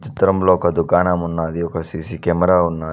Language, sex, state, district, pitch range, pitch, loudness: Telugu, male, Telangana, Mahabubabad, 85-90 Hz, 85 Hz, -18 LUFS